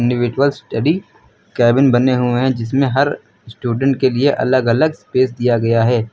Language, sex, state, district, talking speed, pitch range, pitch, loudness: Hindi, male, Uttar Pradesh, Lucknow, 165 wpm, 120-135 Hz, 125 Hz, -16 LUFS